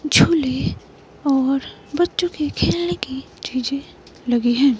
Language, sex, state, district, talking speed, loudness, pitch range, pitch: Hindi, female, Himachal Pradesh, Shimla, 110 wpm, -20 LUFS, 250-295 Hz, 270 Hz